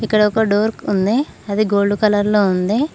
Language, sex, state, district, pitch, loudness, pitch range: Telugu, female, Telangana, Mahabubabad, 210 Hz, -17 LUFS, 205-220 Hz